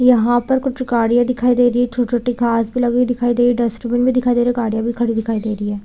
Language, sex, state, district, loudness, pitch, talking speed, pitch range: Hindi, female, Chhattisgarh, Bilaspur, -17 LUFS, 240 Hz, 225 wpm, 230-245 Hz